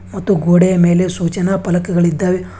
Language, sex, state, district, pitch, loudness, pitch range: Kannada, male, Karnataka, Bangalore, 180 Hz, -14 LUFS, 175-185 Hz